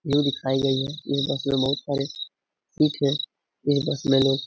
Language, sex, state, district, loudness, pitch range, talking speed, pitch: Hindi, male, Bihar, Jahanabad, -24 LUFS, 135-145 Hz, 200 wpm, 140 Hz